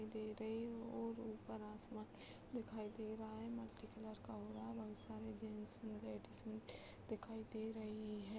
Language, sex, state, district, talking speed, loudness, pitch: Hindi, female, Uttar Pradesh, Budaun, 180 wpm, -50 LUFS, 210 Hz